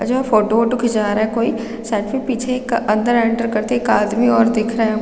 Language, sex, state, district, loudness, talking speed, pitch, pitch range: Hindi, female, Chhattisgarh, Raigarh, -17 LUFS, 240 wpm, 230 Hz, 215-240 Hz